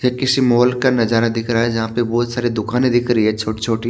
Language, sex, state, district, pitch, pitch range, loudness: Hindi, male, Haryana, Jhajjar, 120 Hz, 115-125 Hz, -17 LUFS